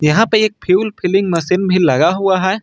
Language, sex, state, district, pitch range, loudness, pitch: Hindi, male, Uttar Pradesh, Lucknow, 180-200 Hz, -14 LUFS, 190 Hz